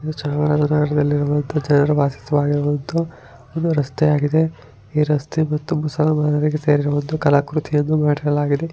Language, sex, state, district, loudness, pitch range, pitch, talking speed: Kannada, male, Karnataka, Chamarajanagar, -19 LUFS, 145-155 Hz, 150 Hz, 95 wpm